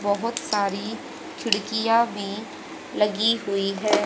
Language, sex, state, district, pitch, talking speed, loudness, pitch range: Hindi, female, Haryana, Jhajjar, 210 Hz, 105 wpm, -24 LUFS, 200-230 Hz